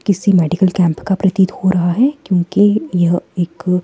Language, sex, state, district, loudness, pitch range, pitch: Hindi, female, Himachal Pradesh, Shimla, -15 LUFS, 175-195 Hz, 185 Hz